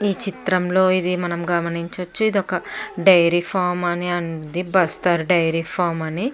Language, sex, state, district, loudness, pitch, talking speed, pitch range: Telugu, female, Andhra Pradesh, Chittoor, -20 LUFS, 180 Hz, 170 wpm, 170-185 Hz